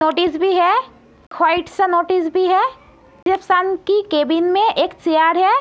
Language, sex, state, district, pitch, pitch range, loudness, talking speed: Hindi, female, Uttar Pradesh, Etah, 365 Hz, 335-380 Hz, -17 LUFS, 140 wpm